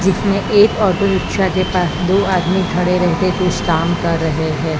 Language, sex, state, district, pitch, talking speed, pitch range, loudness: Hindi, female, Maharashtra, Mumbai Suburban, 185 Hz, 185 wpm, 170-190 Hz, -15 LUFS